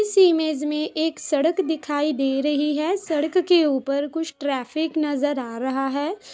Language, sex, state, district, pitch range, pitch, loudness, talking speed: Hindi, female, Uttar Pradesh, Jalaun, 285-320 Hz, 300 Hz, -22 LUFS, 170 wpm